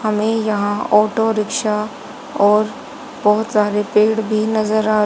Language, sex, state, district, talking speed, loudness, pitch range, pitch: Hindi, female, Haryana, Charkhi Dadri, 130 wpm, -17 LUFS, 210-220 Hz, 215 Hz